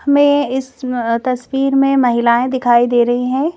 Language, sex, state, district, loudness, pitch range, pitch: Hindi, female, Madhya Pradesh, Bhopal, -15 LUFS, 240-275 Hz, 255 Hz